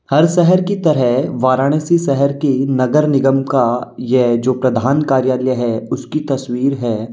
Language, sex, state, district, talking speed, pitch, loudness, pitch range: Hindi, male, Uttar Pradesh, Varanasi, 150 wpm, 135 Hz, -15 LUFS, 130-150 Hz